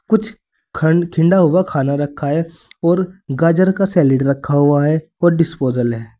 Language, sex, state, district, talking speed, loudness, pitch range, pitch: Hindi, male, Uttar Pradesh, Saharanpur, 165 wpm, -16 LUFS, 145-175 Hz, 165 Hz